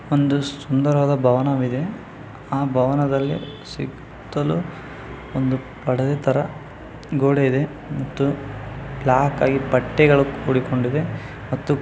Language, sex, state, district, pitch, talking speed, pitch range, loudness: Kannada, male, Karnataka, Bijapur, 140 Hz, 90 wpm, 130-145 Hz, -21 LUFS